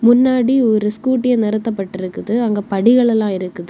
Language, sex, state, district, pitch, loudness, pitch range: Tamil, female, Tamil Nadu, Kanyakumari, 220 Hz, -16 LUFS, 200-245 Hz